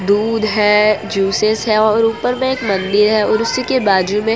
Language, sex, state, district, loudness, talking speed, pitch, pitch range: Hindi, female, Gujarat, Valsad, -14 LUFS, 220 wpm, 215 Hz, 205-225 Hz